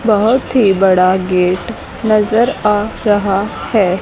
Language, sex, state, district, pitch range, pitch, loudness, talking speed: Hindi, female, Haryana, Charkhi Dadri, 190-220 Hz, 210 Hz, -13 LUFS, 120 wpm